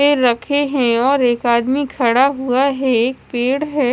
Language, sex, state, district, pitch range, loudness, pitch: Hindi, female, Chandigarh, Chandigarh, 245-280 Hz, -16 LUFS, 260 Hz